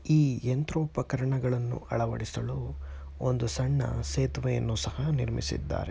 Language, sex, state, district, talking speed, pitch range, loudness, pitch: Kannada, male, Karnataka, Chamarajanagar, 90 wpm, 80-130 Hz, -30 LUFS, 120 Hz